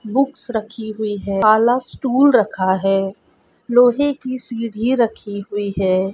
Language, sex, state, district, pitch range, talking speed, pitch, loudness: Hindi, female, Maharashtra, Sindhudurg, 200-250 Hz, 135 wpm, 220 Hz, -18 LUFS